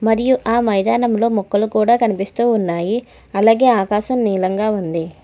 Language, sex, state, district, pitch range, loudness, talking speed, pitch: Telugu, female, Telangana, Hyderabad, 200-235 Hz, -17 LUFS, 125 wpm, 220 Hz